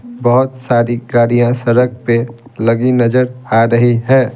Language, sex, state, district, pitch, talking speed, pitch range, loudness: Hindi, male, Bihar, Patna, 120 Hz, 135 wpm, 120-125 Hz, -13 LUFS